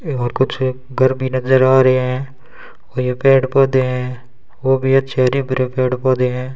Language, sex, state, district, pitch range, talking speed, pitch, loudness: Hindi, male, Rajasthan, Bikaner, 125-130 Hz, 190 wpm, 130 Hz, -16 LUFS